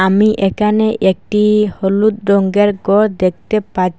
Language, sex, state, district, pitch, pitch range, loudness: Bengali, female, Assam, Hailakandi, 205 Hz, 190-210 Hz, -14 LUFS